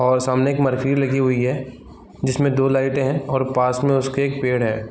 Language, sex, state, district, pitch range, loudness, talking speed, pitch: Hindi, male, Bihar, East Champaran, 130-135 Hz, -20 LUFS, 210 wpm, 135 Hz